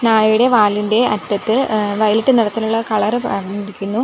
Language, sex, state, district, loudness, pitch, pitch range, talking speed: Malayalam, female, Kerala, Kollam, -16 LUFS, 215 Hz, 210-230 Hz, 120 wpm